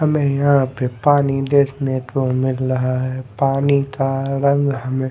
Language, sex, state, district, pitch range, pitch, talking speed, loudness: Hindi, male, Bihar, Patna, 130-140 Hz, 135 Hz, 155 wpm, -18 LUFS